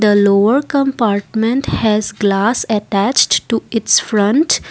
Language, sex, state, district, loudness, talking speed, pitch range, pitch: English, female, Assam, Kamrup Metropolitan, -14 LUFS, 115 wpm, 205-245 Hz, 220 Hz